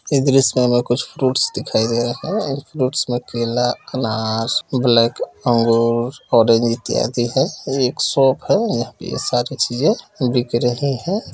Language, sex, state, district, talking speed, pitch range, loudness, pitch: Kumaoni, male, Uttarakhand, Uttarkashi, 165 wpm, 120-135 Hz, -18 LUFS, 125 Hz